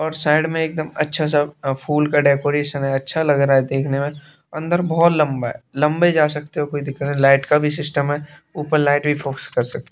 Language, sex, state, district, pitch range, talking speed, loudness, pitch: Hindi, male, Bihar, West Champaran, 140-155 Hz, 240 wpm, -19 LUFS, 150 Hz